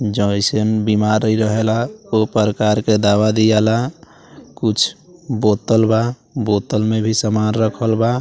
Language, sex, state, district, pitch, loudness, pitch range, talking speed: Bhojpuri, male, Bihar, Muzaffarpur, 110 Hz, -17 LUFS, 105-115 Hz, 125 wpm